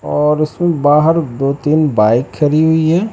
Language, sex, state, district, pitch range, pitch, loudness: Hindi, male, Bihar, West Champaran, 140-160 Hz, 150 Hz, -13 LUFS